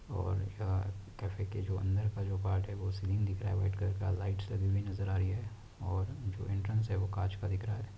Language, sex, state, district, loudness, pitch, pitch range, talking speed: Hindi, male, Uttar Pradesh, Ghazipur, -36 LUFS, 100 Hz, 95-100 Hz, 240 wpm